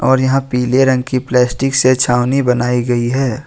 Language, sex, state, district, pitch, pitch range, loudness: Hindi, male, Jharkhand, Ranchi, 130 Hz, 125-130 Hz, -14 LUFS